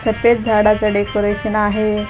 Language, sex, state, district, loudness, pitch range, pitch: Marathi, female, Maharashtra, Mumbai Suburban, -16 LUFS, 210-215 Hz, 215 Hz